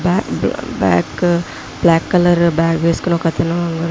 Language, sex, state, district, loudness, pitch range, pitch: Telugu, female, Andhra Pradesh, Visakhapatnam, -16 LUFS, 165-170 Hz, 165 Hz